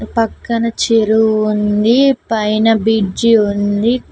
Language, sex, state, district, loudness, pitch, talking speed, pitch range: Telugu, female, Telangana, Mahabubabad, -14 LUFS, 220 Hz, 85 wpm, 215-230 Hz